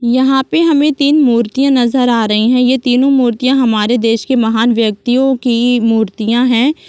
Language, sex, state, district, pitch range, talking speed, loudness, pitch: Hindi, female, Chhattisgarh, Rajnandgaon, 230-265 Hz, 175 wpm, -12 LUFS, 245 Hz